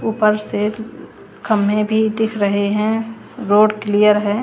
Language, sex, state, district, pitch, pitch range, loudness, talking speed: Hindi, female, Haryana, Charkhi Dadri, 215 Hz, 210-220 Hz, -17 LUFS, 135 wpm